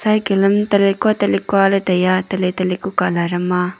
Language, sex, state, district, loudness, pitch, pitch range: Wancho, female, Arunachal Pradesh, Longding, -16 LUFS, 190 Hz, 180-200 Hz